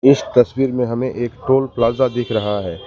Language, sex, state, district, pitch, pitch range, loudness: Hindi, male, West Bengal, Alipurduar, 125 Hz, 115-130 Hz, -18 LUFS